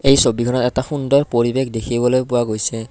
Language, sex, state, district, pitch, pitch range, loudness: Assamese, male, Assam, Kamrup Metropolitan, 125 Hz, 120-130 Hz, -17 LUFS